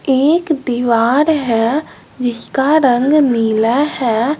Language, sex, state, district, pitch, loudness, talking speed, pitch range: Hindi, male, Bihar, West Champaran, 260 Hz, -14 LUFS, 95 wpm, 235-300 Hz